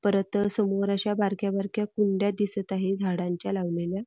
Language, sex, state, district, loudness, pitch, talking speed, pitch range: Marathi, female, Karnataka, Belgaum, -27 LUFS, 200 Hz, 150 wpm, 195-205 Hz